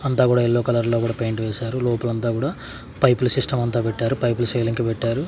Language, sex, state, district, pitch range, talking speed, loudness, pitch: Telugu, male, Andhra Pradesh, Sri Satya Sai, 115-125 Hz, 240 wpm, -20 LUFS, 120 Hz